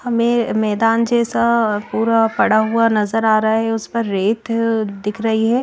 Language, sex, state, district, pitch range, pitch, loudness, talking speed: Hindi, female, Bihar, Katihar, 220-230 Hz, 225 Hz, -17 LUFS, 170 wpm